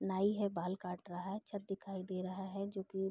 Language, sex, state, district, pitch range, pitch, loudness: Hindi, female, Bihar, East Champaran, 185-195 Hz, 195 Hz, -41 LUFS